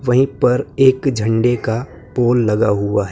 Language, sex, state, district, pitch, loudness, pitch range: Hindi, male, Maharashtra, Gondia, 120 Hz, -16 LUFS, 105-125 Hz